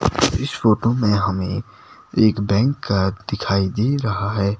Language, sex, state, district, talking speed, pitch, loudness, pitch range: Hindi, male, Himachal Pradesh, Shimla, 130 wpm, 105 Hz, -20 LUFS, 100-110 Hz